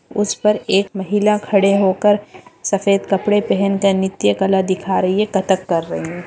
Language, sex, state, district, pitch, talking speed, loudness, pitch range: Hindi, female, Goa, North and South Goa, 195 Hz, 190 wpm, -17 LUFS, 190-205 Hz